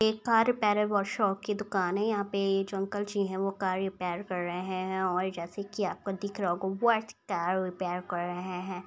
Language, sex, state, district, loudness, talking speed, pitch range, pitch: Hindi, female, Bihar, Muzaffarpur, -31 LUFS, 225 wpm, 185-205 Hz, 195 Hz